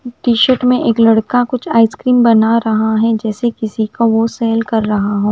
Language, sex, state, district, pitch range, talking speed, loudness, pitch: Hindi, female, Punjab, Fazilka, 220-240 Hz, 190 wpm, -13 LUFS, 225 Hz